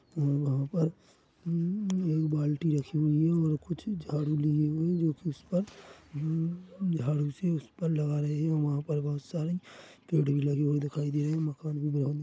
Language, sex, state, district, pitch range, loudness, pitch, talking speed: Hindi, male, Chhattisgarh, Korba, 145-165 Hz, -30 LUFS, 155 Hz, 215 wpm